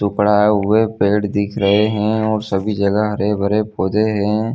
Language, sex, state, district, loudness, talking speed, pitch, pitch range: Hindi, male, Chhattisgarh, Bilaspur, -17 LUFS, 160 wpm, 105 Hz, 100-105 Hz